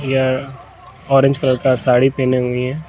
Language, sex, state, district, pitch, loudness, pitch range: Hindi, male, Jharkhand, Garhwa, 130 Hz, -16 LUFS, 130-135 Hz